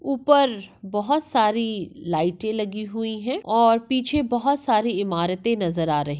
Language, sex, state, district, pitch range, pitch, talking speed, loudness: Hindi, female, Maharashtra, Nagpur, 195-255 Hz, 220 Hz, 145 wpm, -22 LUFS